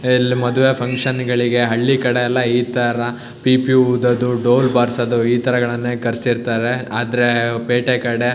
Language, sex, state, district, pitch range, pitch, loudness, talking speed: Kannada, male, Karnataka, Shimoga, 120-125 Hz, 120 Hz, -17 LUFS, 120 wpm